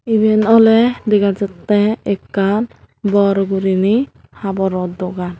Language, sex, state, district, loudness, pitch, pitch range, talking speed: Chakma, female, Tripura, Dhalai, -15 LUFS, 200 Hz, 195-215 Hz, 110 wpm